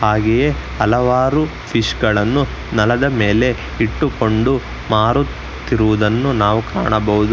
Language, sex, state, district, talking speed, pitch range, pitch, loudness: Kannada, male, Karnataka, Bangalore, 65 wpm, 105-125 Hz, 110 Hz, -16 LUFS